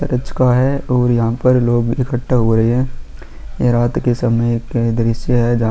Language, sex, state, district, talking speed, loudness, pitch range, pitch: Hindi, male, Chhattisgarh, Kabirdham, 200 wpm, -16 LUFS, 115-125 Hz, 120 Hz